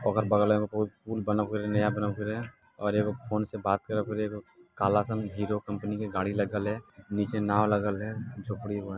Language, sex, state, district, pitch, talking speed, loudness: Maithili, male, Bihar, Lakhisarai, 105 Hz, 255 wpm, -30 LUFS